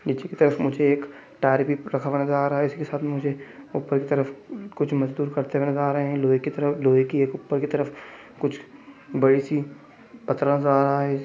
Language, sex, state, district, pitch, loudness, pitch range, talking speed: Hindi, male, Maharashtra, Solapur, 140 Hz, -24 LUFS, 140-145 Hz, 235 wpm